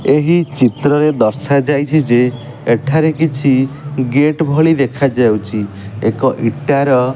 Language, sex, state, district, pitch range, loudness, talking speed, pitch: Odia, male, Odisha, Malkangiri, 125-150 Hz, -14 LUFS, 100 wpm, 140 Hz